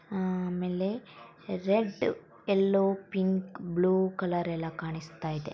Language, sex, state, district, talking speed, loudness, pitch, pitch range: Kannada, female, Karnataka, Mysore, 110 wpm, -30 LUFS, 185 Hz, 170-195 Hz